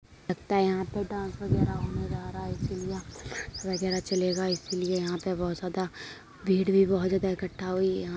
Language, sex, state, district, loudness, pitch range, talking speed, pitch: Hindi, female, Uttar Pradesh, Etah, -30 LUFS, 185-190 Hz, 215 wpm, 185 Hz